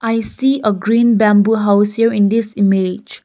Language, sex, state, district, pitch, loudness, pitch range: English, female, Nagaland, Kohima, 215 Hz, -14 LUFS, 205-230 Hz